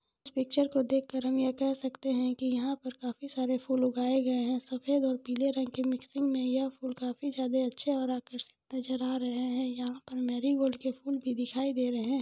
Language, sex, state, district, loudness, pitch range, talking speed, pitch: Hindi, female, Jharkhand, Jamtara, -32 LUFS, 250-270 Hz, 225 wpm, 260 Hz